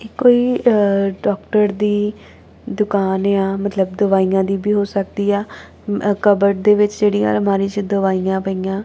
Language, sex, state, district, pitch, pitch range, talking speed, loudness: Punjabi, female, Punjab, Kapurthala, 200 Hz, 195-210 Hz, 140 wpm, -17 LUFS